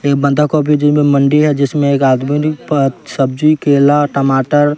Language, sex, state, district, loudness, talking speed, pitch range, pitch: Hindi, male, Bihar, West Champaran, -12 LUFS, 175 wpm, 140-150 Hz, 145 Hz